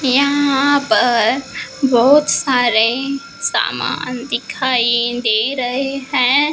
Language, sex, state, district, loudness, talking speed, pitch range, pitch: Hindi, female, Maharashtra, Gondia, -15 LUFS, 85 wpm, 245-280 Hz, 265 Hz